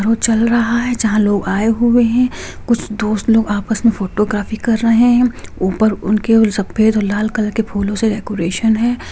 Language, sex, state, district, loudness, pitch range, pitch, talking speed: Hindi, female, Bihar, Gopalganj, -15 LUFS, 210-230 Hz, 220 Hz, 190 wpm